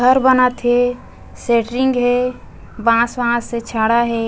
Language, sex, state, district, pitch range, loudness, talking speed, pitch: Chhattisgarhi, female, Chhattisgarh, Bastar, 235-250 Hz, -16 LUFS, 125 wpm, 240 Hz